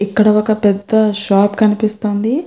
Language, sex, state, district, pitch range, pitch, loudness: Telugu, female, Andhra Pradesh, Krishna, 205-215 Hz, 215 Hz, -14 LUFS